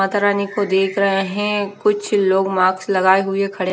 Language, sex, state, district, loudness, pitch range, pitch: Hindi, female, Haryana, Rohtak, -17 LUFS, 190-205 Hz, 195 Hz